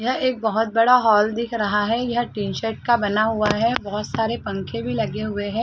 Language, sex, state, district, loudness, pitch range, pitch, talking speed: Hindi, female, Chhattisgarh, Rajnandgaon, -21 LUFS, 210-235 Hz, 225 Hz, 225 wpm